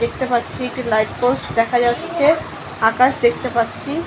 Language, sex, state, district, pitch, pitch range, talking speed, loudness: Bengali, female, West Bengal, North 24 Parganas, 245 Hz, 235-265 Hz, 145 wpm, -18 LUFS